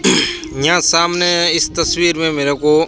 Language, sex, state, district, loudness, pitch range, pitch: Hindi, male, Rajasthan, Barmer, -14 LUFS, 155-175 Hz, 165 Hz